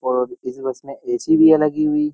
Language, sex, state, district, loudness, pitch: Hindi, male, Uttar Pradesh, Jyotiba Phule Nagar, -18 LUFS, 155 Hz